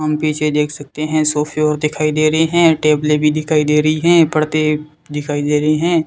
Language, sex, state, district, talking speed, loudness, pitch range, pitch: Hindi, male, Rajasthan, Bikaner, 220 wpm, -15 LUFS, 150-155 Hz, 155 Hz